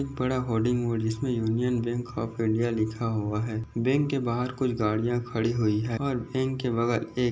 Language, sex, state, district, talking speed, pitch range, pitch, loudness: Hindi, male, Maharashtra, Aurangabad, 205 wpm, 115-125 Hz, 120 Hz, -28 LUFS